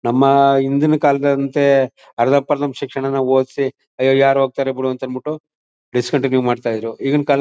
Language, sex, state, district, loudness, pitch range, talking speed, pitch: Kannada, male, Karnataka, Mysore, -17 LUFS, 130-140 Hz, 120 wpm, 135 Hz